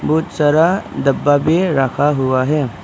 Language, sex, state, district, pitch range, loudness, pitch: Hindi, male, Arunachal Pradesh, Papum Pare, 135-160 Hz, -15 LUFS, 145 Hz